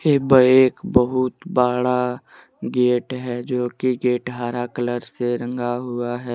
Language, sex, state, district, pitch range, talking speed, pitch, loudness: Hindi, male, Jharkhand, Deoghar, 120-125 Hz, 150 wpm, 125 Hz, -20 LUFS